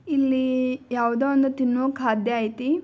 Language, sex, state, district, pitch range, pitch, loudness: Kannada, female, Karnataka, Belgaum, 240-270 Hz, 260 Hz, -23 LUFS